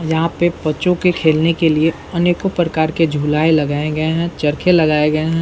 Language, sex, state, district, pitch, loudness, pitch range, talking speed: Hindi, male, Bihar, Saran, 160 Hz, -16 LUFS, 155-170 Hz, 200 wpm